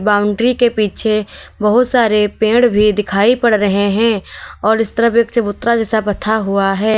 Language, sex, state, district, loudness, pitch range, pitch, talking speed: Hindi, female, Uttar Pradesh, Lalitpur, -14 LUFS, 205-235 Hz, 220 Hz, 170 wpm